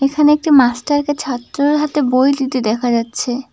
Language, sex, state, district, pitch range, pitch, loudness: Bengali, female, West Bengal, Cooch Behar, 245-290 Hz, 270 Hz, -15 LUFS